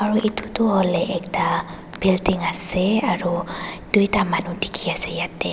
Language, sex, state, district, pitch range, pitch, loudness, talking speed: Nagamese, female, Nagaland, Dimapur, 180-210 Hz, 190 Hz, -22 LUFS, 140 wpm